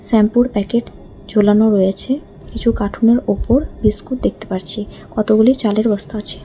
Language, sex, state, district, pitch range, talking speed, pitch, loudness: Bengali, female, West Bengal, Alipurduar, 210-235 Hz, 140 wpm, 220 Hz, -16 LUFS